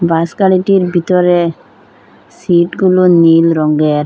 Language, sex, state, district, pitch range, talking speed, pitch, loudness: Bengali, female, Assam, Hailakandi, 165-185 Hz, 75 wpm, 175 Hz, -11 LUFS